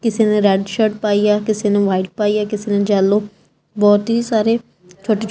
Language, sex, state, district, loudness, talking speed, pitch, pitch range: Punjabi, female, Punjab, Kapurthala, -16 LUFS, 215 wpm, 210 Hz, 205-220 Hz